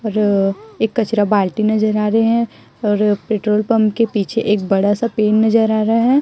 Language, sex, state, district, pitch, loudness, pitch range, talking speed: Hindi, female, Chhattisgarh, Raipur, 215 Hz, -16 LUFS, 210-225 Hz, 200 wpm